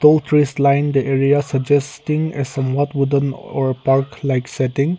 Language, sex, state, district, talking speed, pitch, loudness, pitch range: English, male, Nagaland, Kohima, 155 wpm, 140 Hz, -18 LUFS, 135-145 Hz